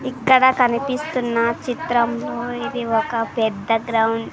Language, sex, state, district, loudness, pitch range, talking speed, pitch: Telugu, female, Andhra Pradesh, Sri Satya Sai, -20 LUFS, 230-255 Hz, 110 wpm, 235 Hz